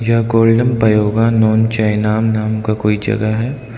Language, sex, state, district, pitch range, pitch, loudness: Hindi, male, Arunachal Pradesh, Lower Dibang Valley, 110-115 Hz, 110 Hz, -14 LUFS